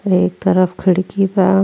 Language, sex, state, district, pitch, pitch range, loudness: Bhojpuri, female, Uttar Pradesh, Ghazipur, 190 Hz, 185-195 Hz, -15 LUFS